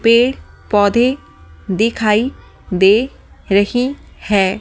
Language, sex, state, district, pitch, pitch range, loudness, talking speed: Hindi, female, Delhi, New Delhi, 215 Hz, 200-240 Hz, -15 LUFS, 65 wpm